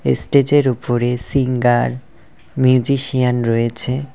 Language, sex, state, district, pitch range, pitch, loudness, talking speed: Bengali, male, West Bengal, Cooch Behar, 120-135 Hz, 125 Hz, -17 LUFS, 70 wpm